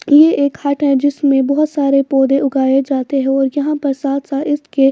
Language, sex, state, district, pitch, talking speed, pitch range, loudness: Hindi, female, Bihar, Patna, 280 Hz, 195 wpm, 270-290 Hz, -14 LUFS